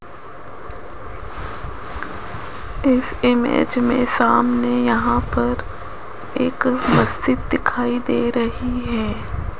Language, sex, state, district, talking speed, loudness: Hindi, female, Rajasthan, Jaipur, 75 wpm, -19 LUFS